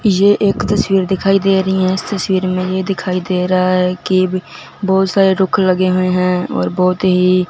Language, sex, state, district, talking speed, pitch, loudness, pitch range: Hindi, male, Punjab, Fazilka, 200 wpm, 185 Hz, -15 LUFS, 185-195 Hz